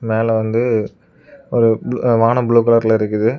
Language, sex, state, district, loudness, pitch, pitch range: Tamil, male, Tamil Nadu, Kanyakumari, -15 LUFS, 115 Hz, 110-120 Hz